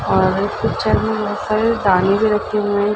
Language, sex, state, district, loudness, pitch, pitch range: Hindi, female, Uttar Pradesh, Ghazipur, -17 LUFS, 210 Hz, 205-215 Hz